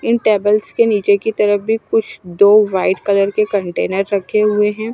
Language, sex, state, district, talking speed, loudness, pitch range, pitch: Hindi, female, Punjab, Kapurthala, 195 wpm, -15 LUFS, 200-220 Hz, 210 Hz